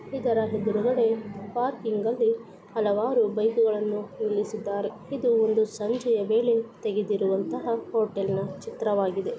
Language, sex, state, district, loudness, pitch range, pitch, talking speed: Kannada, female, Karnataka, Bijapur, -26 LUFS, 205-230 Hz, 220 Hz, 95 wpm